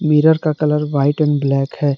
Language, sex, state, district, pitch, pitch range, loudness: Hindi, male, Jharkhand, Garhwa, 150 Hz, 140-155 Hz, -16 LUFS